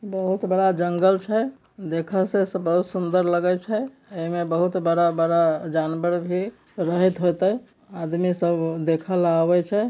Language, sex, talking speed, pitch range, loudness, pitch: Maithili, male, 145 wpm, 170-190 Hz, -22 LUFS, 180 Hz